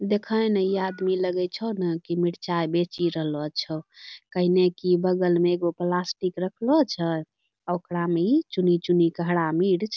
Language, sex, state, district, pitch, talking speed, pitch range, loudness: Angika, female, Bihar, Bhagalpur, 180 Hz, 175 wpm, 170-185 Hz, -25 LUFS